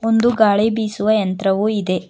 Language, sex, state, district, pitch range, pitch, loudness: Kannada, female, Karnataka, Bangalore, 195-220 Hz, 210 Hz, -17 LUFS